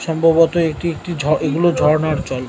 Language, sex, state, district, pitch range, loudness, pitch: Bengali, male, West Bengal, North 24 Parganas, 155-170 Hz, -16 LUFS, 160 Hz